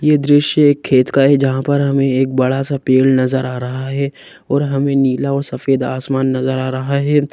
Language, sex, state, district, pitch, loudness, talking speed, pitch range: Hindi, female, Madhya Pradesh, Bhopal, 135 Hz, -15 LUFS, 220 wpm, 130-140 Hz